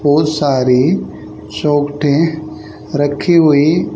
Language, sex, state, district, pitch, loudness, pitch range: Hindi, male, Haryana, Rohtak, 145 Hz, -13 LUFS, 105-155 Hz